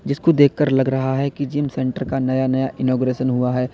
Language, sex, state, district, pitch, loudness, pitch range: Hindi, male, Uttar Pradesh, Lalitpur, 130 Hz, -19 LUFS, 130-140 Hz